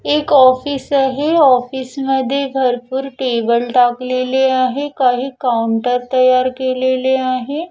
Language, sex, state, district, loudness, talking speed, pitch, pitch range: Marathi, female, Maharashtra, Washim, -15 LUFS, 110 wpm, 260 Hz, 255-270 Hz